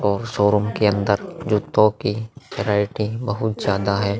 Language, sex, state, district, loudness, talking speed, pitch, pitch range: Hindi, male, Uttar Pradesh, Muzaffarnagar, -21 LUFS, 145 wpm, 105 Hz, 100-110 Hz